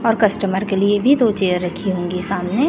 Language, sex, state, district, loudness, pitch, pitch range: Hindi, female, Chhattisgarh, Raipur, -17 LUFS, 195 Hz, 185-215 Hz